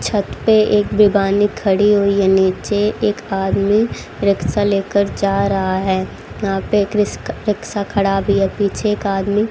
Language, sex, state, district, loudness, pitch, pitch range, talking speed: Hindi, female, Haryana, Jhajjar, -17 LUFS, 200 Hz, 195-210 Hz, 170 wpm